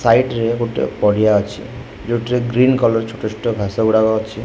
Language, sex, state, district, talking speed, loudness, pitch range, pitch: Odia, male, Odisha, Khordha, 175 wpm, -17 LUFS, 110-120 Hz, 115 Hz